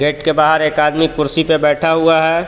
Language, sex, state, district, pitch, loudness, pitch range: Hindi, male, Jharkhand, Palamu, 160 Hz, -13 LUFS, 150-160 Hz